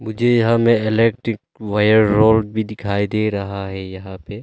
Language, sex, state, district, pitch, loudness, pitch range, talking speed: Hindi, male, Arunachal Pradesh, Longding, 110 Hz, -17 LUFS, 100-115 Hz, 175 wpm